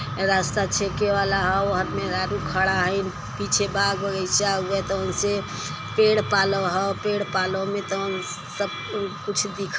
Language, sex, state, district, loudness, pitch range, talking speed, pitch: Bhojpuri, female, Uttar Pradesh, Varanasi, -23 LUFS, 185-200 Hz, 160 wpm, 195 Hz